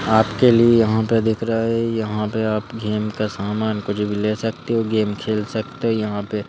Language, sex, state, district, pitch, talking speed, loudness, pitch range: Hindi, male, Madhya Pradesh, Bhopal, 110 Hz, 220 wpm, -20 LUFS, 105-115 Hz